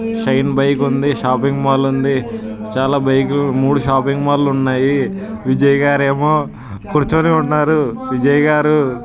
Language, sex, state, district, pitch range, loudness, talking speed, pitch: Telugu, male, Andhra Pradesh, Srikakulam, 135-145 Hz, -15 LUFS, 120 wpm, 140 Hz